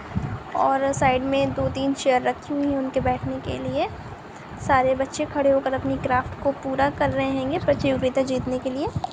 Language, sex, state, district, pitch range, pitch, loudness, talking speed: Hindi, female, Bihar, Sitamarhi, 260-275 Hz, 270 Hz, -23 LUFS, 185 wpm